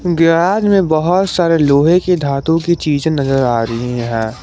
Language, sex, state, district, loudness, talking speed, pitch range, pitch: Hindi, male, Jharkhand, Garhwa, -14 LUFS, 175 wpm, 135-175 Hz, 160 Hz